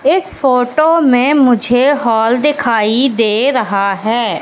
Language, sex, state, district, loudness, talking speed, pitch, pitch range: Hindi, female, Madhya Pradesh, Katni, -12 LUFS, 120 wpm, 245 Hz, 225-275 Hz